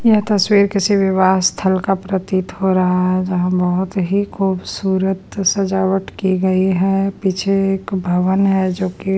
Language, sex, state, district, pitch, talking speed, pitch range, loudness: Hindi, female, Bihar, Patna, 190 Hz, 155 wpm, 185-195 Hz, -17 LUFS